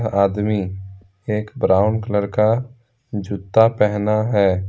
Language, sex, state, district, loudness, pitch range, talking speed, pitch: Hindi, male, Jharkhand, Deoghar, -19 LUFS, 100-110 Hz, 100 wpm, 105 Hz